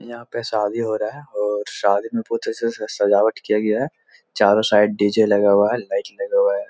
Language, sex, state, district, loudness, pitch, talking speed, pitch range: Hindi, male, Bihar, Jahanabad, -20 LUFS, 110 Hz, 235 wpm, 105-120 Hz